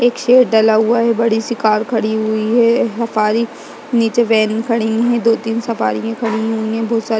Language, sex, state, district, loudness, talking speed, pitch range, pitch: Hindi, female, Uttarakhand, Uttarkashi, -15 LUFS, 185 wpm, 220-235 Hz, 225 Hz